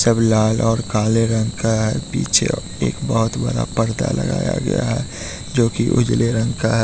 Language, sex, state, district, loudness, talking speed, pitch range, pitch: Hindi, male, Bihar, West Champaran, -19 LUFS, 165 wpm, 110-115 Hz, 115 Hz